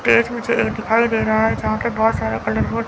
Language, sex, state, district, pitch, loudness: Hindi, female, Chandigarh, Chandigarh, 220 Hz, -18 LUFS